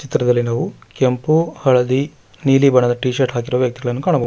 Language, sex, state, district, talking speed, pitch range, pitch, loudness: Kannada, male, Karnataka, Bangalore, 155 wpm, 120-140 Hz, 130 Hz, -17 LUFS